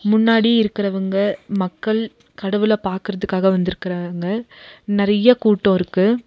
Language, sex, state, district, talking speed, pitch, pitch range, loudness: Tamil, female, Tamil Nadu, Nilgiris, 85 wpm, 200 Hz, 190-220 Hz, -18 LUFS